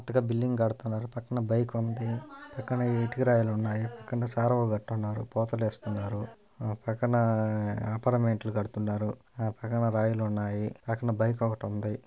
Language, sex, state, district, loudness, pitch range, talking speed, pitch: Telugu, male, Telangana, Karimnagar, -30 LUFS, 110-120 Hz, 125 wpm, 115 Hz